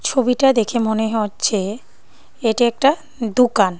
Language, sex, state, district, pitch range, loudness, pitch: Bengali, female, Tripura, Dhalai, 220-260 Hz, -18 LUFS, 235 Hz